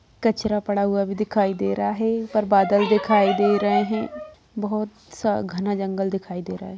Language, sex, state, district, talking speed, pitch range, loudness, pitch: Hindi, female, Bihar, Muzaffarpur, 195 wpm, 190-215 Hz, -22 LUFS, 205 Hz